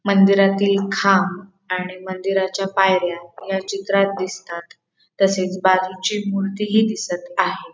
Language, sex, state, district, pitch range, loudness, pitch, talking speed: Marathi, female, Maharashtra, Pune, 185-195 Hz, -19 LUFS, 195 Hz, 110 wpm